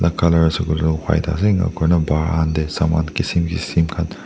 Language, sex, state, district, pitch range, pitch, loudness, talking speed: Nagamese, male, Nagaland, Dimapur, 80-85 Hz, 80 Hz, -18 LUFS, 185 wpm